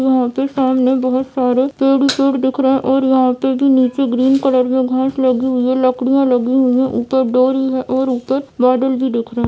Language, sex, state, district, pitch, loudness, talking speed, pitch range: Hindi, female, Bihar, Vaishali, 260 Hz, -15 LUFS, 230 wpm, 255-265 Hz